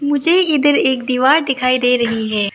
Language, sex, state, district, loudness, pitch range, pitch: Hindi, female, Arunachal Pradesh, Lower Dibang Valley, -14 LUFS, 245-290 Hz, 260 Hz